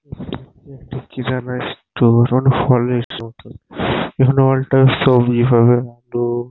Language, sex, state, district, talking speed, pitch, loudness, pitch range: Bengali, male, West Bengal, Purulia, 120 wpm, 125 Hz, -15 LUFS, 120-130 Hz